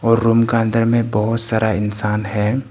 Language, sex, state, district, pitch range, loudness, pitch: Hindi, male, Arunachal Pradesh, Papum Pare, 105-115 Hz, -17 LUFS, 115 Hz